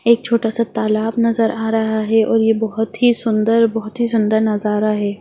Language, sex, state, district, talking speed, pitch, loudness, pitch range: Hindi, female, Bihar, Jahanabad, 220 wpm, 225 Hz, -17 LUFS, 220-230 Hz